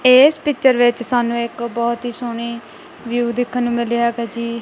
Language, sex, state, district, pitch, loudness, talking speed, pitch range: Punjabi, female, Punjab, Kapurthala, 240 Hz, -18 LUFS, 180 wpm, 235-245 Hz